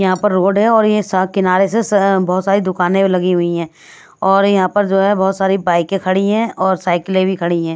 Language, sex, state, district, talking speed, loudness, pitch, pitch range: Hindi, female, Punjab, Pathankot, 240 wpm, -14 LUFS, 190 Hz, 185-195 Hz